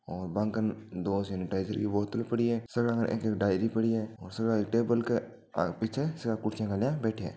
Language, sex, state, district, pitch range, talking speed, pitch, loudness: Marwari, male, Rajasthan, Nagaur, 100-115 Hz, 210 wpm, 110 Hz, -31 LUFS